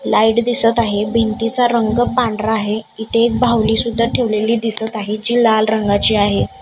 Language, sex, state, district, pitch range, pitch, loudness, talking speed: Marathi, female, Maharashtra, Gondia, 215-235 Hz, 225 Hz, -16 LUFS, 165 wpm